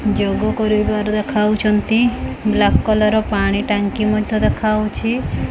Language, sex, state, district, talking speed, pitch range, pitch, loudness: Odia, female, Odisha, Khordha, 110 wpm, 210-215 Hz, 215 Hz, -17 LUFS